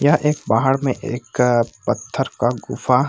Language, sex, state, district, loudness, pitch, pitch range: Hindi, male, Bihar, Purnia, -20 LUFS, 130 Hz, 120-145 Hz